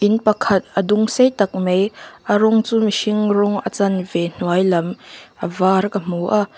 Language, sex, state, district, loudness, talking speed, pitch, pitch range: Mizo, female, Mizoram, Aizawl, -18 LUFS, 190 wpm, 200 Hz, 185-210 Hz